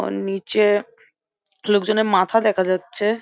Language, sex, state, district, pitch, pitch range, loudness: Bengali, female, West Bengal, Jhargram, 205 Hz, 185-215 Hz, -19 LUFS